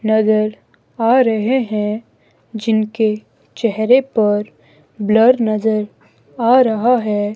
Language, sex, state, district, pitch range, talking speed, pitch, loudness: Hindi, female, Himachal Pradesh, Shimla, 215-230 Hz, 100 wpm, 220 Hz, -16 LUFS